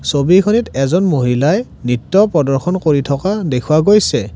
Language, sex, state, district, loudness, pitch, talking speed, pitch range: Assamese, male, Assam, Kamrup Metropolitan, -14 LUFS, 155 Hz, 125 wpm, 135-190 Hz